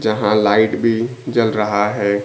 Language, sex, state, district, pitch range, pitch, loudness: Hindi, female, Bihar, Kaimur, 105-115 Hz, 105 Hz, -16 LUFS